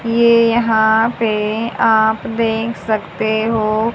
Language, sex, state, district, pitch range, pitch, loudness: Hindi, male, Haryana, Charkhi Dadri, 220-230 Hz, 225 Hz, -15 LUFS